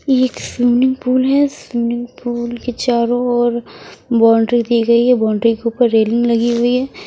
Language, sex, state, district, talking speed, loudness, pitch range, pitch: Hindi, female, Odisha, Sambalpur, 170 wpm, -15 LUFS, 235-250 Hz, 240 Hz